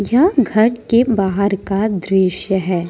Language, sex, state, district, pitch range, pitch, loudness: Hindi, female, Jharkhand, Deoghar, 190-230 Hz, 200 Hz, -16 LUFS